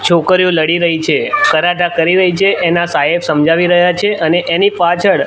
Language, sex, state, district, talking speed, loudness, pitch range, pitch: Gujarati, male, Gujarat, Gandhinagar, 180 wpm, -12 LUFS, 170-185 Hz, 175 Hz